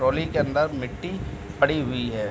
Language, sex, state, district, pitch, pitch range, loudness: Hindi, male, Uttar Pradesh, Deoria, 130 Hz, 125-150 Hz, -25 LUFS